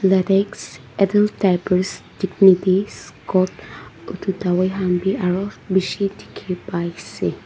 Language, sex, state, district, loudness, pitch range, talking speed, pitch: Nagamese, female, Nagaland, Dimapur, -20 LUFS, 185-195 Hz, 95 wpm, 190 Hz